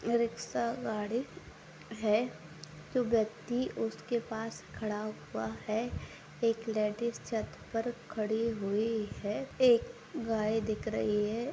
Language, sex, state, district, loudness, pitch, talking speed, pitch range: Hindi, female, Maharashtra, Pune, -34 LUFS, 225 Hz, 115 wpm, 215-235 Hz